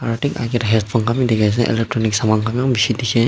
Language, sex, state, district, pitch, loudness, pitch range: Nagamese, male, Nagaland, Dimapur, 115 Hz, -18 LUFS, 110-120 Hz